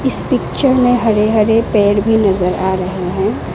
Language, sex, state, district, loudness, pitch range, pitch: Hindi, female, Arunachal Pradesh, Lower Dibang Valley, -14 LUFS, 190-225 Hz, 210 Hz